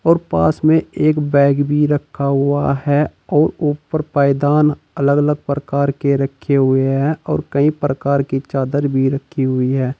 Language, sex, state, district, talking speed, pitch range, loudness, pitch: Hindi, male, Uttar Pradesh, Saharanpur, 170 wpm, 140-150 Hz, -16 LUFS, 145 Hz